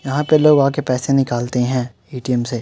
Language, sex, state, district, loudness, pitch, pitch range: Hindi, male, Uttar Pradesh, Muzaffarnagar, -17 LUFS, 130 Hz, 125-140 Hz